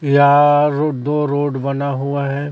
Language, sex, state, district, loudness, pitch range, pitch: Hindi, female, Chhattisgarh, Raipur, -16 LUFS, 140-145 Hz, 140 Hz